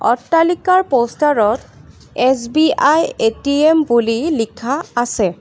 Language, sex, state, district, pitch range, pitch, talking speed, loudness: Assamese, female, Assam, Kamrup Metropolitan, 235-315 Hz, 265 Hz, 80 wpm, -15 LUFS